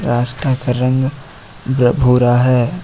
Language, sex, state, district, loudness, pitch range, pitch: Hindi, male, Jharkhand, Ranchi, -15 LUFS, 125-130 Hz, 125 Hz